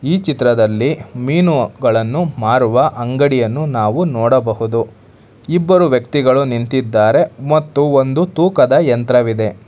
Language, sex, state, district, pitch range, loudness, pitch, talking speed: Kannada, male, Karnataka, Bangalore, 115-150 Hz, -14 LUFS, 125 Hz, 85 wpm